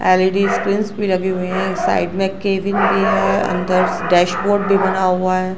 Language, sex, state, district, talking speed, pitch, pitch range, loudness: Hindi, female, Gujarat, Gandhinagar, 185 wpm, 190 Hz, 185-195 Hz, -17 LUFS